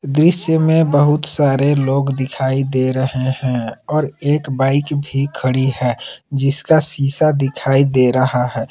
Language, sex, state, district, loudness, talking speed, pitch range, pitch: Hindi, male, Jharkhand, Palamu, -16 LUFS, 145 wpm, 130-145 Hz, 135 Hz